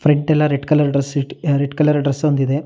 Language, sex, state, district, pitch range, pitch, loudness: Kannada, male, Karnataka, Shimoga, 140-150 Hz, 145 Hz, -17 LUFS